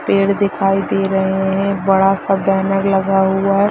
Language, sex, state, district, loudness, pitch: Hindi, female, Bihar, Madhepura, -15 LUFS, 195 Hz